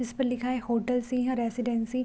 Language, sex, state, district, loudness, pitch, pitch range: Hindi, female, Bihar, Vaishali, -29 LUFS, 245 Hz, 240-255 Hz